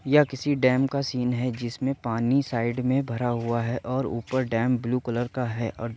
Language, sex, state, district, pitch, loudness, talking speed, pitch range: Hindi, male, Uttar Pradesh, Varanasi, 125 Hz, -26 LUFS, 220 wpm, 120-130 Hz